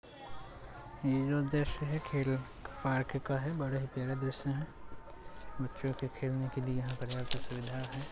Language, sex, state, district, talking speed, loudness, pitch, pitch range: Hindi, male, Uttar Pradesh, Hamirpur, 170 wpm, -36 LUFS, 135 Hz, 130-140 Hz